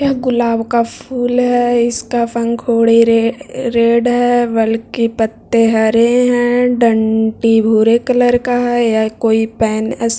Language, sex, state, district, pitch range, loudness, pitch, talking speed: Hindi, male, Bihar, Jahanabad, 225-245 Hz, -13 LUFS, 235 Hz, 135 wpm